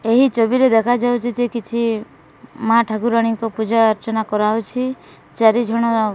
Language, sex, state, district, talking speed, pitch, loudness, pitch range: Odia, female, Odisha, Malkangiri, 125 wpm, 230 Hz, -17 LUFS, 220-240 Hz